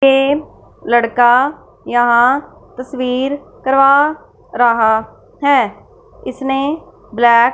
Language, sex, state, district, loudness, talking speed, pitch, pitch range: Hindi, female, Punjab, Fazilka, -14 LUFS, 80 wpm, 265 Hz, 240-280 Hz